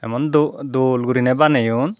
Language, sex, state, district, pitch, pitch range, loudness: Chakma, female, Tripura, Dhalai, 130 Hz, 125-150 Hz, -17 LUFS